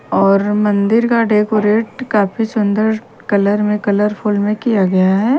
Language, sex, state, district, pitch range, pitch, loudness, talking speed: Hindi, female, Haryana, Charkhi Dadri, 205-220 Hz, 210 Hz, -15 LUFS, 145 wpm